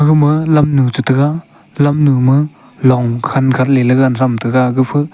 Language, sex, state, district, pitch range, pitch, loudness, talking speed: Wancho, male, Arunachal Pradesh, Longding, 130-145 Hz, 135 Hz, -13 LUFS, 150 wpm